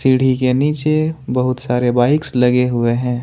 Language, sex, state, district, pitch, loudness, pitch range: Hindi, male, Jharkhand, Ranchi, 125 Hz, -16 LUFS, 125-145 Hz